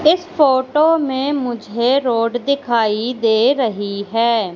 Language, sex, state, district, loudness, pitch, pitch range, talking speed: Hindi, female, Madhya Pradesh, Katni, -17 LUFS, 245 Hz, 225-280 Hz, 120 wpm